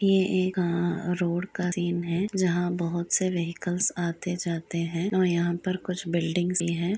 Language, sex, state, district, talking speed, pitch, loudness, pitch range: Hindi, female, Uttar Pradesh, Gorakhpur, 170 wpm, 175 Hz, -27 LUFS, 170-185 Hz